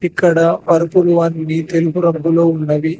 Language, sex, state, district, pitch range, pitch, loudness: Telugu, male, Telangana, Hyderabad, 165-170 Hz, 165 Hz, -14 LUFS